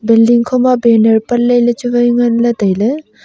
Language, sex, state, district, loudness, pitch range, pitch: Wancho, female, Arunachal Pradesh, Longding, -11 LUFS, 230-245 Hz, 240 Hz